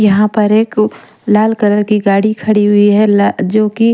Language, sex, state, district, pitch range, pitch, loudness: Hindi, female, Punjab, Pathankot, 205-215 Hz, 210 Hz, -11 LUFS